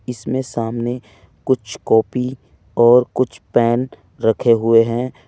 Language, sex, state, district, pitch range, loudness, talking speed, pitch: Hindi, male, Uttar Pradesh, Saharanpur, 115-125 Hz, -17 LUFS, 115 wpm, 120 Hz